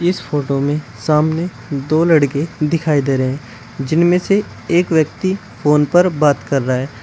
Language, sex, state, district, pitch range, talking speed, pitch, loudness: Hindi, male, Uttar Pradesh, Shamli, 140-170 Hz, 170 wpm, 150 Hz, -16 LUFS